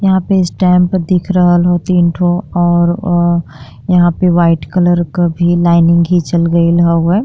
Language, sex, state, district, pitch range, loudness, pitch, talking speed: Bhojpuri, female, Uttar Pradesh, Deoria, 170-180 Hz, -11 LUFS, 175 Hz, 150 wpm